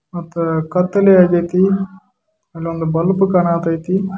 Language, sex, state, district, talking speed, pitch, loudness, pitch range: Kannada, male, Karnataka, Dharwad, 70 wpm, 180 Hz, -15 LUFS, 165-195 Hz